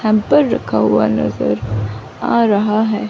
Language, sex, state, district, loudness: Hindi, female, Chandigarh, Chandigarh, -16 LUFS